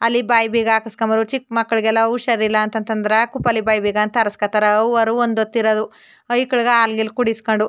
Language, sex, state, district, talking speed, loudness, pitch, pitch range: Kannada, female, Karnataka, Chamarajanagar, 165 wpm, -17 LUFS, 225 Hz, 220-235 Hz